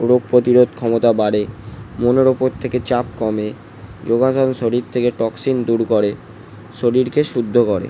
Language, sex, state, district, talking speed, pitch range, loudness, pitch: Bengali, male, West Bengal, Jalpaiguri, 150 wpm, 110-125 Hz, -17 LUFS, 120 Hz